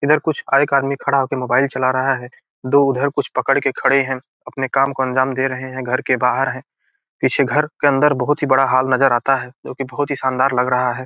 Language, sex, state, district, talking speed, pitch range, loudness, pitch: Hindi, male, Bihar, Gopalganj, 250 wpm, 130-140 Hz, -18 LUFS, 135 Hz